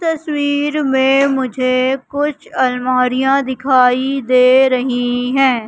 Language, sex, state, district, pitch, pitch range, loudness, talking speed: Hindi, female, Madhya Pradesh, Katni, 265 Hz, 255-275 Hz, -15 LUFS, 95 wpm